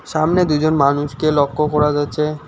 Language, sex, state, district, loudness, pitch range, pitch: Bengali, male, West Bengal, Alipurduar, -17 LUFS, 145-155 Hz, 150 Hz